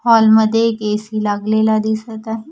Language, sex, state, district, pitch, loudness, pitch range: Marathi, female, Maharashtra, Washim, 220 Hz, -16 LUFS, 215-225 Hz